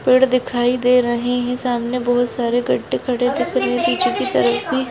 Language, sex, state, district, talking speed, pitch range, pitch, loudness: Hindi, female, Rajasthan, Nagaur, 195 wpm, 245-255 Hz, 245 Hz, -18 LUFS